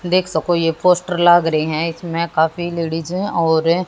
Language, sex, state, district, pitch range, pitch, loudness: Hindi, female, Haryana, Jhajjar, 165-175 Hz, 170 Hz, -17 LUFS